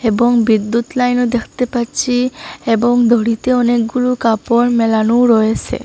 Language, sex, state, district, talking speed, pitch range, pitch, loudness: Bengali, female, Assam, Hailakandi, 125 wpm, 230-250 Hz, 240 Hz, -14 LUFS